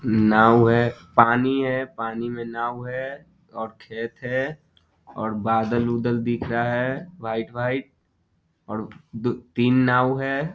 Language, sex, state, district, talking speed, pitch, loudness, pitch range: Hindi, male, Bihar, Muzaffarpur, 130 wpm, 120 Hz, -23 LUFS, 115-130 Hz